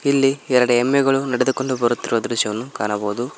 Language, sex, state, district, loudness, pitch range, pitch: Kannada, male, Karnataka, Koppal, -19 LUFS, 120-135 Hz, 125 Hz